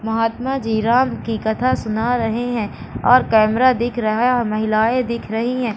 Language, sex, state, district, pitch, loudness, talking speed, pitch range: Hindi, female, Madhya Pradesh, Katni, 230 Hz, -18 LUFS, 185 wpm, 220-245 Hz